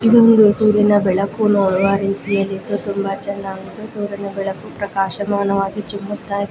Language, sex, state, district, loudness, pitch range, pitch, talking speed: Kannada, female, Karnataka, Raichur, -17 LUFS, 195-210 Hz, 200 Hz, 120 wpm